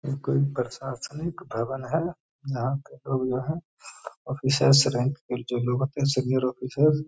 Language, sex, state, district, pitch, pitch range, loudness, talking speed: Hindi, male, Bihar, Gaya, 135 Hz, 130-145 Hz, -26 LUFS, 150 wpm